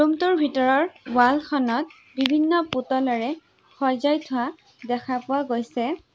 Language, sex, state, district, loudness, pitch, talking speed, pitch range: Assamese, female, Assam, Sonitpur, -23 LUFS, 270 Hz, 100 wpm, 250-305 Hz